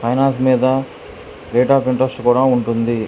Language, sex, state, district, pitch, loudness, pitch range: Telugu, male, Andhra Pradesh, Krishna, 130 Hz, -16 LUFS, 120-130 Hz